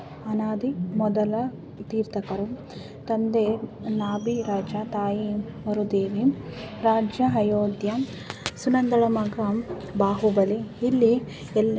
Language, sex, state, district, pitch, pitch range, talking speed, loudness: Kannada, female, Karnataka, Bijapur, 215 Hz, 205-225 Hz, 75 wpm, -25 LUFS